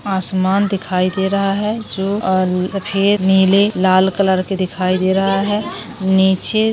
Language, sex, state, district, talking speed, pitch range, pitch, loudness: Hindi, female, Maharashtra, Dhule, 150 wpm, 185-200 Hz, 190 Hz, -16 LUFS